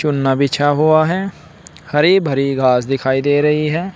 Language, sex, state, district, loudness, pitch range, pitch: Hindi, male, Uttar Pradesh, Saharanpur, -15 LUFS, 135-155 Hz, 145 Hz